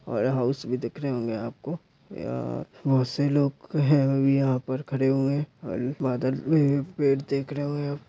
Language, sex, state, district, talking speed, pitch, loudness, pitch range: Hindi, male, Uttar Pradesh, Deoria, 180 wpm, 135 Hz, -26 LUFS, 130-145 Hz